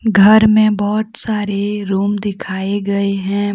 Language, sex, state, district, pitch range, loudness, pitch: Hindi, female, Jharkhand, Deoghar, 200-215 Hz, -15 LUFS, 205 Hz